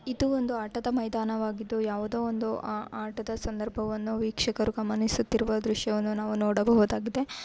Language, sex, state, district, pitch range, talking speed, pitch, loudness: Kannada, female, Karnataka, Bijapur, 215-230 Hz, 115 wpm, 220 Hz, -29 LUFS